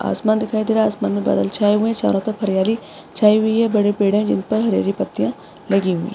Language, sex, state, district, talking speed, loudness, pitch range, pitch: Hindi, female, Maharashtra, Aurangabad, 265 wpm, -18 LUFS, 190-220 Hz, 210 Hz